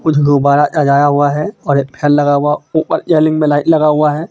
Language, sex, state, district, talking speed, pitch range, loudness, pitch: Hindi, male, Jharkhand, Deoghar, 235 wpm, 145-155 Hz, -12 LUFS, 150 Hz